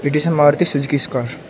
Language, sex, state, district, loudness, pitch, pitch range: English, male, Arunachal Pradesh, Lower Dibang Valley, -16 LUFS, 145 Hz, 140-150 Hz